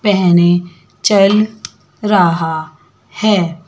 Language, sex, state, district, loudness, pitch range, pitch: Hindi, female, Chandigarh, Chandigarh, -13 LUFS, 155-205 Hz, 175 Hz